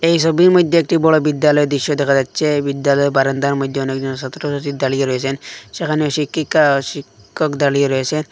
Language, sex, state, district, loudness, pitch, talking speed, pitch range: Bengali, male, Assam, Hailakandi, -16 LUFS, 145 Hz, 160 wpm, 135-155 Hz